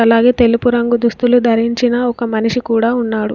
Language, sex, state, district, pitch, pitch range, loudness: Telugu, female, Telangana, Komaram Bheem, 235 Hz, 230-245 Hz, -14 LUFS